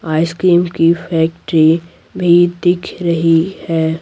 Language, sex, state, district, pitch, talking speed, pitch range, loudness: Hindi, female, Bihar, Patna, 170 Hz, 120 wpm, 165-175 Hz, -14 LUFS